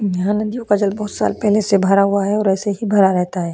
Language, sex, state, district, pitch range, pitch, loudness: Hindi, female, Goa, North and South Goa, 195-210 Hz, 200 Hz, -17 LUFS